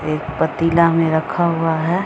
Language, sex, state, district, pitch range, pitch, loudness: Hindi, female, Bihar, Samastipur, 160-170 Hz, 165 Hz, -17 LUFS